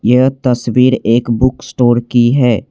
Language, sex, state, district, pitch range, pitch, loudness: Hindi, male, Assam, Kamrup Metropolitan, 120-130 Hz, 125 Hz, -12 LUFS